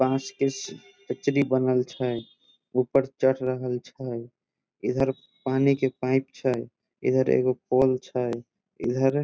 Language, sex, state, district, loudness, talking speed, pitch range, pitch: Maithili, male, Bihar, Samastipur, -26 LUFS, 130 wpm, 125-135 Hz, 130 Hz